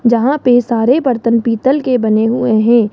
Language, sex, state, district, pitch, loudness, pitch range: Hindi, male, Rajasthan, Jaipur, 235 Hz, -12 LUFS, 230-255 Hz